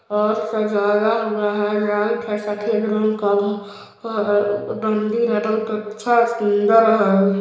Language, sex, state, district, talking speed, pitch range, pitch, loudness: Hindi, male, Chhattisgarh, Balrampur, 130 wpm, 205-220 Hz, 215 Hz, -19 LUFS